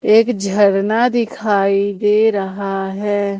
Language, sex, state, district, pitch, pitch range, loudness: Hindi, female, Madhya Pradesh, Umaria, 205 Hz, 195-215 Hz, -16 LUFS